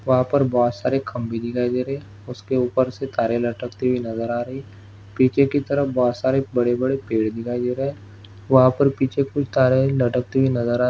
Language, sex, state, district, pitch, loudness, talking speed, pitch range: Hindi, male, Maharashtra, Solapur, 125 Hz, -21 LUFS, 215 wpm, 120-135 Hz